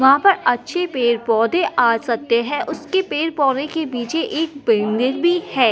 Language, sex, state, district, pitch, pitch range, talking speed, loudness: Hindi, female, Bihar, Muzaffarpur, 275 Hz, 235-325 Hz, 155 wpm, -18 LUFS